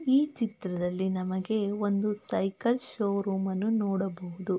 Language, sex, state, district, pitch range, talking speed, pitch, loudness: Kannada, female, Karnataka, Mysore, 185-215 Hz, 105 wpm, 200 Hz, -30 LUFS